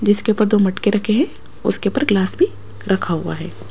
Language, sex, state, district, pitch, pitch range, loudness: Hindi, female, Rajasthan, Jaipur, 205 Hz, 190-220 Hz, -18 LUFS